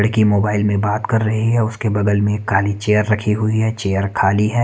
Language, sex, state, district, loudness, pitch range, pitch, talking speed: Hindi, male, Haryana, Charkhi Dadri, -17 LUFS, 105-110 Hz, 105 Hz, 235 wpm